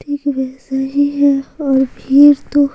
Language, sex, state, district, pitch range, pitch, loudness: Hindi, female, Bihar, Patna, 270-285 Hz, 280 Hz, -14 LUFS